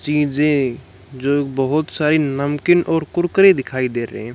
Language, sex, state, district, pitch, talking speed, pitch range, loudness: Hindi, male, Haryana, Rohtak, 145 Hz, 150 wpm, 130-155 Hz, -17 LUFS